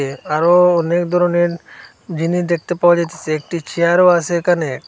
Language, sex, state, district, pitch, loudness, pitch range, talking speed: Bengali, male, Assam, Hailakandi, 170 Hz, -16 LUFS, 165-175 Hz, 135 wpm